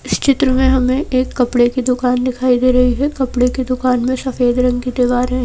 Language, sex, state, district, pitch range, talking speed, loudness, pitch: Hindi, female, Madhya Pradesh, Bhopal, 250-260 Hz, 230 wpm, -15 LUFS, 255 Hz